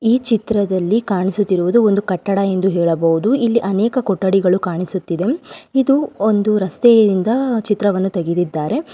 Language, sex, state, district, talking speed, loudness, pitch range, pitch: Kannada, female, Karnataka, Raichur, 115 wpm, -16 LUFS, 185-230 Hz, 200 Hz